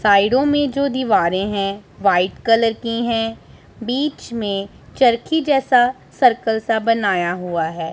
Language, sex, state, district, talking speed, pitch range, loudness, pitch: Hindi, male, Punjab, Pathankot, 135 wpm, 200-250 Hz, -18 LUFS, 225 Hz